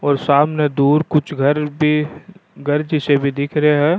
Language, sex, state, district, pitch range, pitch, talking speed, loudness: Rajasthani, male, Rajasthan, Churu, 145-150 Hz, 150 Hz, 165 wpm, -17 LUFS